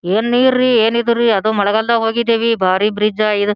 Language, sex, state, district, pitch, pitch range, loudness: Kannada, female, Karnataka, Gulbarga, 225 Hz, 210-235 Hz, -14 LUFS